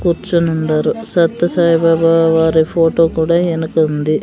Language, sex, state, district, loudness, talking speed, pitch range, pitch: Telugu, female, Andhra Pradesh, Sri Satya Sai, -14 LUFS, 100 wpm, 160-170 Hz, 165 Hz